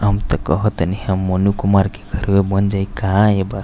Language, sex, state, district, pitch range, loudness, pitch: Bhojpuri, male, Uttar Pradesh, Deoria, 95-100 Hz, -17 LUFS, 100 Hz